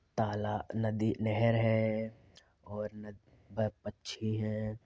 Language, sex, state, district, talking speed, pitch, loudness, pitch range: Hindi, male, Uttar Pradesh, Varanasi, 85 wpm, 110 Hz, -34 LUFS, 105-110 Hz